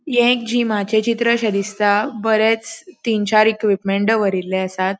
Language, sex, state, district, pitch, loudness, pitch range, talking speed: Konkani, female, Goa, North and South Goa, 220 Hz, -18 LUFS, 200-235 Hz, 145 wpm